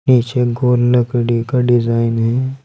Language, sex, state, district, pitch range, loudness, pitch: Hindi, male, Uttar Pradesh, Saharanpur, 120-125 Hz, -15 LUFS, 120 Hz